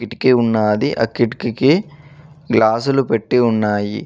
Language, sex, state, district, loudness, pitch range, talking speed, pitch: Telugu, male, Telangana, Mahabubabad, -16 LUFS, 110-140 Hz, 120 wpm, 120 Hz